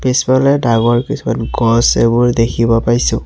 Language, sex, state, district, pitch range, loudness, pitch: Assamese, male, Assam, Sonitpur, 115-130 Hz, -13 LUFS, 120 Hz